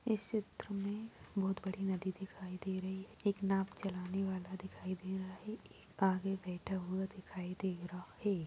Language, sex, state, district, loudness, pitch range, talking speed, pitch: Hindi, female, Bihar, Lakhisarai, -40 LUFS, 185-195 Hz, 175 wpm, 190 Hz